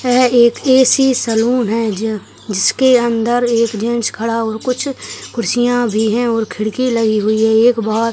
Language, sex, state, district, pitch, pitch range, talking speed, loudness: Hindi, male, Uttarakhand, Tehri Garhwal, 230 Hz, 220-245 Hz, 175 wpm, -14 LUFS